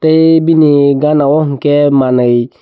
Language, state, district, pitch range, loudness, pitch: Kokborok, Tripura, Dhalai, 140-155 Hz, -10 LUFS, 145 Hz